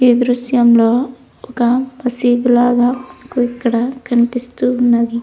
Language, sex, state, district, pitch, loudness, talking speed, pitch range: Telugu, female, Andhra Pradesh, Krishna, 245 Hz, -15 LUFS, 115 wpm, 240-250 Hz